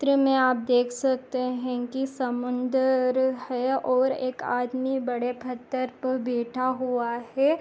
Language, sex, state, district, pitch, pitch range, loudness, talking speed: Hindi, female, Goa, North and South Goa, 255 Hz, 250-260 Hz, -26 LUFS, 150 wpm